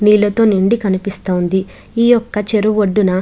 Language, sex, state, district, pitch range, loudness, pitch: Telugu, female, Andhra Pradesh, Krishna, 190-215 Hz, -14 LUFS, 210 Hz